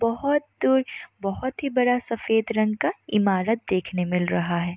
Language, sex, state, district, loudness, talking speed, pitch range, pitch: Hindi, female, Bihar, Gopalganj, -24 LUFS, 175 wpm, 185-250 Hz, 220 Hz